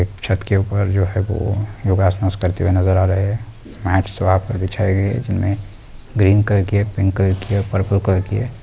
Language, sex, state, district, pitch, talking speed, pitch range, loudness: Hindi, male, Bihar, Araria, 100 Hz, 215 wpm, 95-105 Hz, -18 LUFS